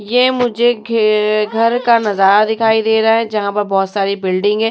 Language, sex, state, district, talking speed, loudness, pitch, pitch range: Hindi, female, Uttar Pradesh, Muzaffarnagar, 205 wpm, -14 LUFS, 220 Hz, 205-230 Hz